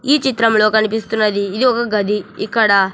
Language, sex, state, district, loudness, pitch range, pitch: Telugu, male, Telangana, Hyderabad, -15 LUFS, 210-235 Hz, 220 Hz